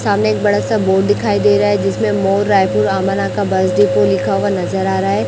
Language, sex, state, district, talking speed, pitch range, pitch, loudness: Hindi, female, Chhattisgarh, Raipur, 250 wpm, 190-205 Hz, 195 Hz, -14 LUFS